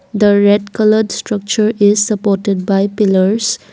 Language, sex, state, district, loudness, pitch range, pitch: English, female, Assam, Kamrup Metropolitan, -13 LUFS, 200-215 Hz, 205 Hz